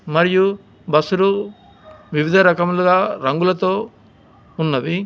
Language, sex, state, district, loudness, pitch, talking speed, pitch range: Telugu, male, Telangana, Hyderabad, -17 LUFS, 180 Hz, 70 wpm, 160-190 Hz